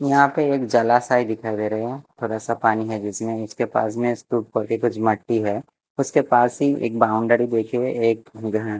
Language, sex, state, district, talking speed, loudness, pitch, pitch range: Hindi, male, Bihar, West Champaran, 205 wpm, -21 LUFS, 115 Hz, 110-125 Hz